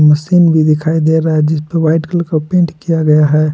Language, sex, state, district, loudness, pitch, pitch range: Hindi, male, Jharkhand, Palamu, -12 LUFS, 160 Hz, 155-165 Hz